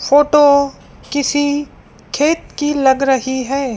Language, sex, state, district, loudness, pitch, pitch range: Hindi, female, Madhya Pradesh, Dhar, -15 LUFS, 285 Hz, 270-290 Hz